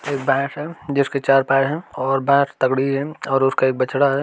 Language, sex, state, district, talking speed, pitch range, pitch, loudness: Hindi, male, Uttar Pradesh, Varanasi, 225 wpm, 135-140 Hz, 135 Hz, -19 LUFS